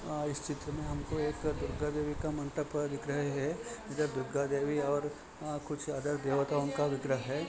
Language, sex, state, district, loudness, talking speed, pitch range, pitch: Hindi, male, Maharashtra, Chandrapur, -35 LUFS, 170 wpm, 140-150 Hz, 145 Hz